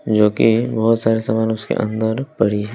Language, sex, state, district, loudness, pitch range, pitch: Hindi, male, Bihar, West Champaran, -18 LUFS, 110-115 Hz, 110 Hz